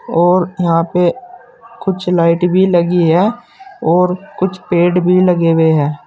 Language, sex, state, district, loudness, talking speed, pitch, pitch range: Hindi, male, Uttar Pradesh, Saharanpur, -13 LUFS, 150 wpm, 180 Hz, 170-190 Hz